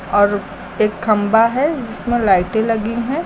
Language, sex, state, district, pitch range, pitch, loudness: Hindi, female, Uttar Pradesh, Lucknow, 205-235 Hz, 220 Hz, -17 LUFS